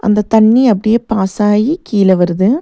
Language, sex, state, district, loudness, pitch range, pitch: Tamil, female, Tamil Nadu, Nilgiris, -12 LUFS, 200-230 Hz, 215 Hz